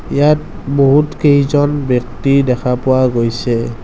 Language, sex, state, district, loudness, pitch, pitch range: Assamese, male, Assam, Kamrup Metropolitan, -14 LUFS, 130 Hz, 120-140 Hz